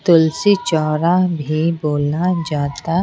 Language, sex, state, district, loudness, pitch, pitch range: Hindi, female, Bihar, Patna, -17 LUFS, 165 Hz, 150-175 Hz